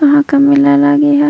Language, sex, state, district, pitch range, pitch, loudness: Surgujia, female, Chhattisgarh, Sarguja, 285-290 Hz, 290 Hz, -9 LUFS